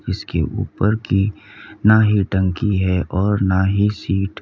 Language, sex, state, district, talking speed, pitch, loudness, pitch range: Hindi, male, Uttar Pradesh, Lalitpur, 135 wpm, 100 Hz, -18 LUFS, 95-105 Hz